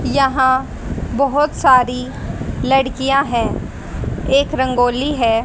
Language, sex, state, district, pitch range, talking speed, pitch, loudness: Hindi, female, Haryana, Rohtak, 250-275 Hz, 90 wpm, 260 Hz, -17 LUFS